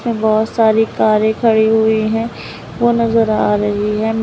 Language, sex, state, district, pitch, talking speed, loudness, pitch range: Hindi, female, Uttar Pradesh, Lalitpur, 220 Hz, 155 wpm, -14 LUFS, 215-225 Hz